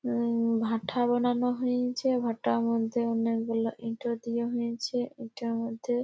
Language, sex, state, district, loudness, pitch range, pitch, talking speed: Bengali, female, West Bengal, Malda, -29 LUFS, 230-245 Hz, 235 Hz, 120 wpm